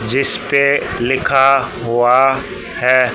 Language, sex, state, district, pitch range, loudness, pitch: Hindi, male, Haryana, Charkhi Dadri, 125-135 Hz, -14 LUFS, 135 Hz